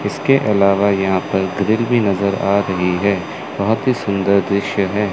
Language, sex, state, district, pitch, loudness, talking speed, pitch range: Hindi, male, Chandigarh, Chandigarh, 100 Hz, -17 LUFS, 175 wpm, 100-105 Hz